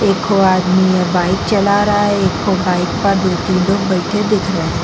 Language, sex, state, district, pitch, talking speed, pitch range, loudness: Hindi, female, Bihar, Vaishali, 190 Hz, 210 wpm, 180-200 Hz, -14 LUFS